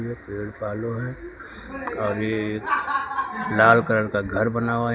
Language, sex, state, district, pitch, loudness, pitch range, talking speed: Hindi, male, Uttar Pradesh, Lucknow, 115 Hz, -23 LUFS, 105-125 Hz, 135 wpm